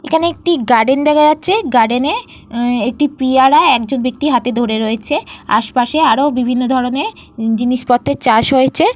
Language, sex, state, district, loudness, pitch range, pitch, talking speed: Bengali, female, Jharkhand, Jamtara, -13 LUFS, 240-295 Hz, 255 Hz, 145 wpm